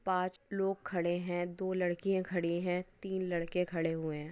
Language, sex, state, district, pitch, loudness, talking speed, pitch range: Hindi, female, Maharashtra, Dhule, 180 Hz, -35 LUFS, 180 wpm, 175-185 Hz